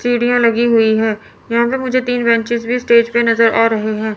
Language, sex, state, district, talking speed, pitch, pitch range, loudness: Hindi, female, Chandigarh, Chandigarh, 230 wpm, 235 Hz, 225-245 Hz, -14 LUFS